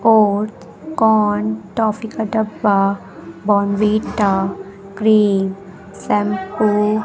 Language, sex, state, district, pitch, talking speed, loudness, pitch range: Hindi, female, Bihar, West Champaran, 210 Hz, 75 wpm, -17 LUFS, 195-215 Hz